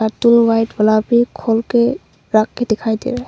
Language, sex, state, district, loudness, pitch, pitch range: Hindi, female, Arunachal Pradesh, Longding, -15 LUFS, 230 Hz, 220-240 Hz